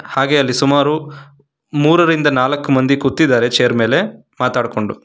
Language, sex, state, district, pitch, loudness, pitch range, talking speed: Kannada, male, Karnataka, Bangalore, 140 Hz, -14 LUFS, 125-145 Hz, 105 wpm